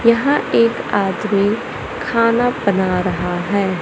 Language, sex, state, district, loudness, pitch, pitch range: Hindi, male, Madhya Pradesh, Katni, -17 LUFS, 205 Hz, 190-235 Hz